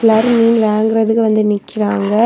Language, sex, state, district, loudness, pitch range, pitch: Tamil, female, Tamil Nadu, Kanyakumari, -13 LUFS, 210-225 Hz, 220 Hz